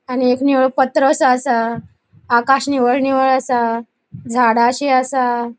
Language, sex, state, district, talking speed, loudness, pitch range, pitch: Konkani, female, Goa, North and South Goa, 120 wpm, -15 LUFS, 240-265 Hz, 255 Hz